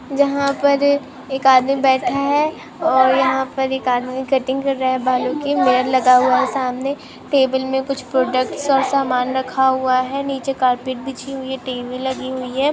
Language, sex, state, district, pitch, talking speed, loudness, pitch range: Hindi, female, West Bengal, Kolkata, 265 Hz, 185 wpm, -18 LUFS, 255-275 Hz